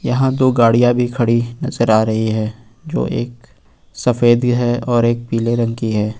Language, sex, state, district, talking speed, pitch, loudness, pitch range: Hindi, male, Uttar Pradesh, Lucknow, 195 wpm, 120 Hz, -16 LUFS, 115-120 Hz